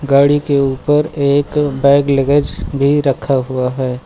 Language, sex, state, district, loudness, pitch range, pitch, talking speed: Hindi, male, Uttar Pradesh, Lucknow, -14 LUFS, 135-145 Hz, 140 Hz, 150 wpm